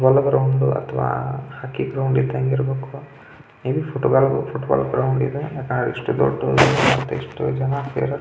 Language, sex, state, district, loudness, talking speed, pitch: Kannada, male, Karnataka, Belgaum, -20 LUFS, 140 wpm, 125 Hz